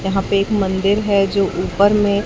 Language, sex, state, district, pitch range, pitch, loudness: Hindi, male, Chhattisgarh, Raipur, 195-200 Hz, 195 Hz, -17 LUFS